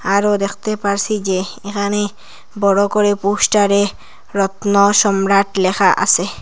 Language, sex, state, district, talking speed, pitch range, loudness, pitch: Bengali, female, Assam, Hailakandi, 110 wpm, 200-205 Hz, -16 LUFS, 200 Hz